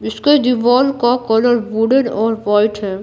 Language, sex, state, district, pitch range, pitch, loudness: Hindi, female, Bihar, Patna, 220-250 Hz, 225 Hz, -14 LUFS